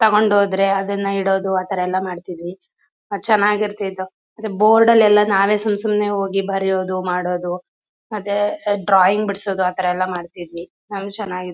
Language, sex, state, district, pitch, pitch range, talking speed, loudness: Kannada, female, Karnataka, Mysore, 195 Hz, 185-210 Hz, 125 wpm, -18 LUFS